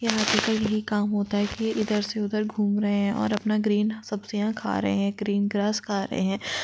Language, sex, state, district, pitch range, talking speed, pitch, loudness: Hindi, female, Chhattisgarh, Kabirdham, 205-215 Hz, 235 wpm, 210 Hz, -25 LUFS